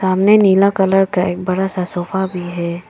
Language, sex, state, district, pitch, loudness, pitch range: Hindi, female, Arunachal Pradesh, Papum Pare, 185 Hz, -15 LUFS, 180-190 Hz